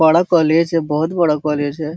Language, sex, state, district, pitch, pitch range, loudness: Hindi, male, Bihar, Jahanabad, 160 Hz, 150-170 Hz, -16 LUFS